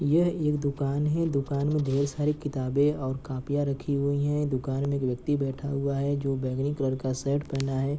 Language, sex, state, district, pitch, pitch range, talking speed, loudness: Hindi, male, Bihar, Gopalganj, 140 Hz, 135-145 Hz, 220 wpm, -28 LUFS